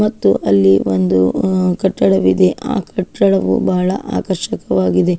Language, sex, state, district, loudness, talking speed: Kannada, female, Karnataka, Shimoga, -15 LUFS, 115 wpm